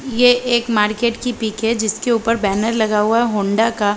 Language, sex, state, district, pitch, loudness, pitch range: Hindi, female, Chhattisgarh, Balrampur, 225 Hz, -17 LUFS, 210-235 Hz